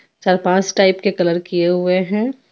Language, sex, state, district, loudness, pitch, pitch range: Hindi, female, Jharkhand, Ranchi, -17 LUFS, 190 Hz, 180-200 Hz